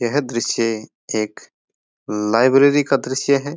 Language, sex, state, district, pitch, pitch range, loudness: Rajasthani, male, Rajasthan, Churu, 130 Hz, 115-140 Hz, -18 LUFS